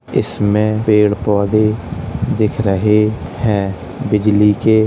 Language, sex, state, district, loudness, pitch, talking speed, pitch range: Hindi, male, Uttar Pradesh, Jalaun, -15 LUFS, 105 Hz, 110 wpm, 100-110 Hz